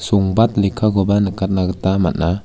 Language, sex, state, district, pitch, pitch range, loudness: Garo, male, Meghalaya, West Garo Hills, 95 Hz, 95-100 Hz, -17 LUFS